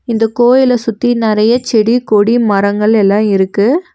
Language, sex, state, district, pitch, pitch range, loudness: Tamil, female, Tamil Nadu, Nilgiris, 225 Hz, 210-245 Hz, -11 LUFS